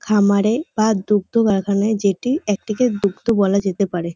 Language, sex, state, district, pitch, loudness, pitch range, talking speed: Bengali, female, West Bengal, North 24 Parganas, 205 Hz, -18 LUFS, 200-220 Hz, 160 wpm